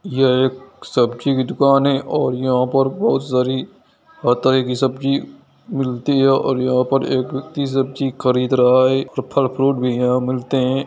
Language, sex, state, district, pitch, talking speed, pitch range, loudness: Hindi, male, Bihar, East Champaran, 130 Hz, 180 wpm, 125-135 Hz, -18 LUFS